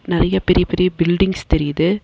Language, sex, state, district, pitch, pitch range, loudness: Tamil, female, Tamil Nadu, Nilgiris, 180 Hz, 170-190 Hz, -17 LUFS